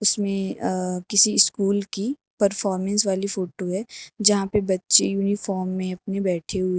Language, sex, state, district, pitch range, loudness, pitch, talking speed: Hindi, female, Uttar Pradesh, Lucknow, 185-205 Hz, -22 LUFS, 195 Hz, 150 wpm